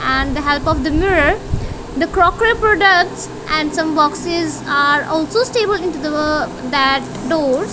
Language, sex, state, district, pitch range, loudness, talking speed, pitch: English, female, Punjab, Kapurthala, 290-360 Hz, -16 LUFS, 145 wpm, 315 Hz